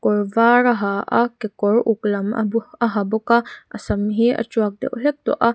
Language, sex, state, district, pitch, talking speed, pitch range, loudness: Mizo, female, Mizoram, Aizawl, 225 Hz, 250 wpm, 210-235 Hz, -19 LUFS